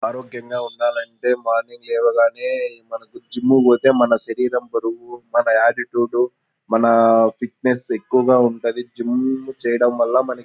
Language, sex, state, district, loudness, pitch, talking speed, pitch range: Telugu, male, Andhra Pradesh, Anantapur, -18 LUFS, 120 Hz, 120 wpm, 120-130 Hz